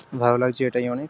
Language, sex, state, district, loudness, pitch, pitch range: Bengali, male, West Bengal, North 24 Parganas, -22 LUFS, 125 Hz, 125-130 Hz